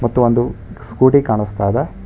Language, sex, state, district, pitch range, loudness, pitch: Kannada, male, Karnataka, Bangalore, 110-130 Hz, -16 LUFS, 120 Hz